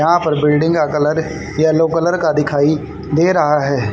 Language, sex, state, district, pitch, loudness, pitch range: Hindi, male, Haryana, Rohtak, 155 Hz, -15 LUFS, 150-160 Hz